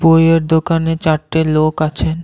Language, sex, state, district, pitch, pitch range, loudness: Bengali, male, Assam, Kamrup Metropolitan, 160 Hz, 155-165 Hz, -14 LUFS